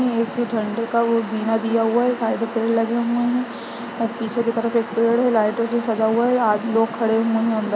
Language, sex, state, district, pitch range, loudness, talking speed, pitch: Hindi, female, Chhattisgarh, Sarguja, 225-235 Hz, -20 LUFS, 255 wpm, 230 Hz